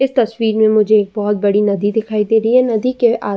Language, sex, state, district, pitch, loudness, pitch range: Hindi, female, Uttar Pradesh, Jyotiba Phule Nagar, 220 Hz, -14 LUFS, 205-235 Hz